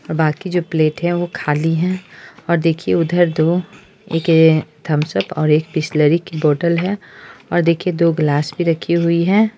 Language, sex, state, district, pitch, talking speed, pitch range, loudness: Hindi, female, Bihar, Araria, 165 Hz, 165 wpm, 155-175 Hz, -17 LUFS